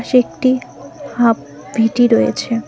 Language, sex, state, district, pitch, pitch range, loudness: Bengali, female, West Bengal, Cooch Behar, 235 Hz, 225-250 Hz, -16 LUFS